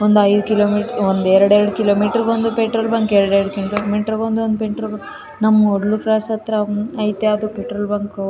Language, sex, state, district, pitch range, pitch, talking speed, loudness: Kannada, female, Karnataka, Raichur, 205-220 Hz, 210 Hz, 165 wpm, -17 LUFS